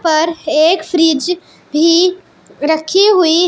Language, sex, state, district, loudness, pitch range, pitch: Hindi, female, Punjab, Pathankot, -13 LUFS, 315-360 Hz, 335 Hz